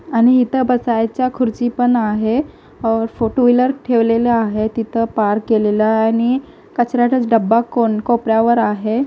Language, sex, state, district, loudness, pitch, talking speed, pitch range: Marathi, female, Maharashtra, Gondia, -16 LUFS, 235 Hz, 120 wpm, 225-245 Hz